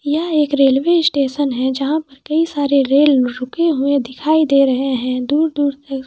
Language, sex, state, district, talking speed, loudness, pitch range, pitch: Hindi, female, Jharkhand, Sahebganj, 180 wpm, -16 LUFS, 265-300 Hz, 280 Hz